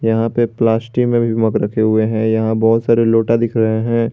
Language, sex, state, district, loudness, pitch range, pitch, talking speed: Hindi, male, Jharkhand, Garhwa, -15 LUFS, 110-115 Hz, 115 Hz, 230 wpm